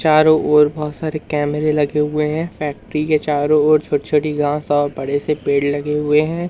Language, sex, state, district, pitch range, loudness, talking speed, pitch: Hindi, male, Madhya Pradesh, Umaria, 145-155 Hz, -17 LUFS, 205 wpm, 150 Hz